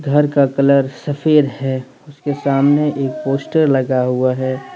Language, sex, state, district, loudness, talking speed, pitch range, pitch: Hindi, male, Jharkhand, Deoghar, -16 LUFS, 150 wpm, 130-145 Hz, 140 Hz